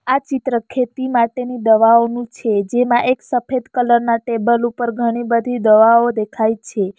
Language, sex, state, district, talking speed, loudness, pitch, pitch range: Gujarati, female, Gujarat, Valsad, 155 wpm, -16 LUFS, 235 Hz, 230-245 Hz